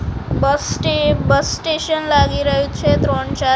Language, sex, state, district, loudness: Gujarati, female, Gujarat, Gandhinagar, -17 LUFS